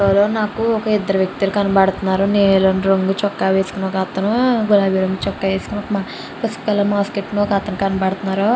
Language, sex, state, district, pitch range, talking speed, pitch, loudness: Telugu, female, Andhra Pradesh, Chittoor, 190-205 Hz, 140 wpm, 195 Hz, -18 LUFS